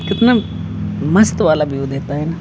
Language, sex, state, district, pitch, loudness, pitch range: Hindi, male, Rajasthan, Jaipur, 150 Hz, -16 LUFS, 135-195 Hz